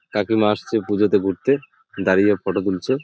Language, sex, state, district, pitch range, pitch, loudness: Bengali, male, West Bengal, Jalpaiguri, 100-110 Hz, 105 Hz, -20 LUFS